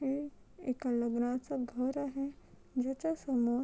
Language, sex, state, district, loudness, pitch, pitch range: Marathi, female, Maharashtra, Chandrapur, -36 LUFS, 265 Hz, 245-280 Hz